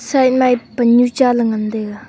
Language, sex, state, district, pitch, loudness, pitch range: Wancho, female, Arunachal Pradesh, Longding, 245 Hz, -15 LUFS, 225-255 Hz